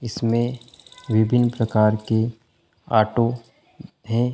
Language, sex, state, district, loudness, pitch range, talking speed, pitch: Hindi, male, Chhattisgarh, Bilaspur, -21 LUFS, 110-120 Hz, 85 wpm, 115 Hz